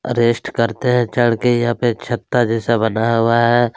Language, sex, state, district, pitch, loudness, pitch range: Hindi, male, Chhattisgarh, Kabirdham, 120 Hz, -17 LUFS, 115-120 Hz